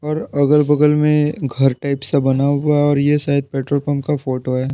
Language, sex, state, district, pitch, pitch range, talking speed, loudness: Hindi, male, Bihar, Patna, 145 Hz, 135-150 Hz, 205 wpm, -17 LUFS